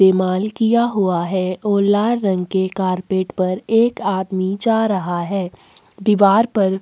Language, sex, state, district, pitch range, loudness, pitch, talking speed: Hindi, female, Chhattisgarh, Sukma, 185-210 Hz, -18 LUFS, 190 Hz, 150 wpm